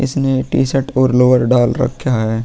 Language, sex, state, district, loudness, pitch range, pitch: Hindi, male, Bihar, Vaishali, -14 LUFS, 125-135 Hz, 130 Hz